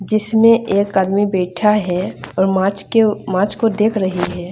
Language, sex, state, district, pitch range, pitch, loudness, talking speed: Hindi, female, Bihar, Darbhanga, 190-215 Hz, 200 Hz, -16 LUFS, 170 wpm